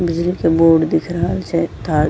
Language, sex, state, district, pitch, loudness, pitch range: Angika, female, Bihar, Bhagalpur, 165 Hz, -16 LUFS, 165-175 Hz